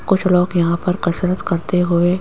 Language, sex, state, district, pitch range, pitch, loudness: Hindi, female, Rajasthan, Jaipur, 175-185 Hz, 180 Hz, -17 LUFS